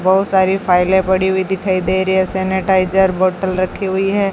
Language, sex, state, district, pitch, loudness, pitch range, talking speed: Hindi, female, Rajasthan, Bikaner, 190 Hz, -15 LUFS, 185-190 Hz, 195 wpm